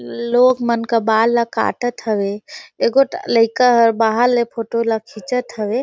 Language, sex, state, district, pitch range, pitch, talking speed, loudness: Surgujia, female, Chhattisgarh, Sarguja, 220-245 Hz, 230 Hz, 175 wpm, -17 LUFS